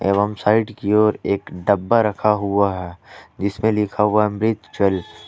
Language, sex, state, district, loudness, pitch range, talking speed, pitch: Hindi, male, Jharkhand, Ranchi, -19 LUFS, 100-105 Hz, 160 wpm, 105 Hz